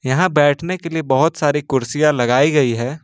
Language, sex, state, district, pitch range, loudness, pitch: Hindi, male, Jharkhand, Ranchi, 130-160 Hz, -16 LUFS, 145 Hz